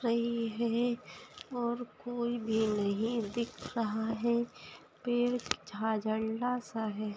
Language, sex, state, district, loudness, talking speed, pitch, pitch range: Hindi, female, Bihar, Sitamarhi, -34 LUFS, 100 wpm, 235 Hz, 220-240 Hz